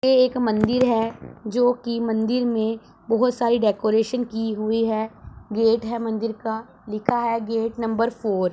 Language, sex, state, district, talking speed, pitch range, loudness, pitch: Hindi, female, Punjab, Pathankot, 160 wpm, 220-235 Hz, -23 LUFS, 225 Hz